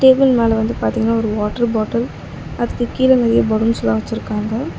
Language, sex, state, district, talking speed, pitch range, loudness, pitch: Tamil, female, Tamil Nadu, Chennai, 165 wpm, 220-240 Hz, -17 LUFS, 230 Hz